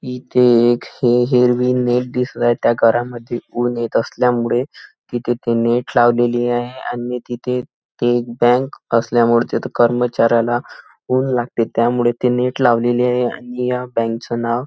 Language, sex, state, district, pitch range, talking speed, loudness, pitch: Marathi, male, Maharashtra, Nagpur, 120-125 Hz, 145 wpm, -17 LUFS, 120 Hz